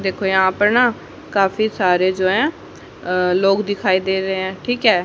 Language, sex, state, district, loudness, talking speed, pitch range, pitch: Hindi, female, Haryana, Jhajjar, -17 LUFS, 190 wpm, 185-215 Hz, 190 Hz